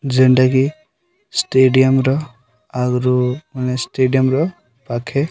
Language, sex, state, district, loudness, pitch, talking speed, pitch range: Odia, male, Odisha, Sambalpur, -16 LUFS, 130 Hz, 115 wpm, 125-140 Hz